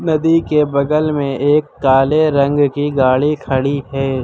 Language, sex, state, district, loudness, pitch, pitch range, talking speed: Hindi, male, Uttar Pradesh, Lucknow, -15 LUFS, 145 Hz, 135-150 Hz, 155 wpm